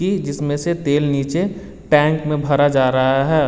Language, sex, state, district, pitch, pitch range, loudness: Hindi, male, Delhi, New Delhi, 145 Hz, 140-155 Hz, -17 LUFS